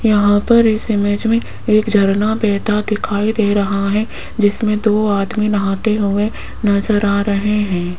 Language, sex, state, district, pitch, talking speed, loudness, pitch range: Hindi, female, Rajasthan, Jaipur, 210 Hz, 160 wpm, -16 LUFS, 205-215 Hz